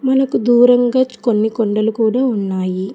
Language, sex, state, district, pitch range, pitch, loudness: Telugu, female, Telangana, Hyderabad, 215-255 Hz, 230 Hz, -15 LUFS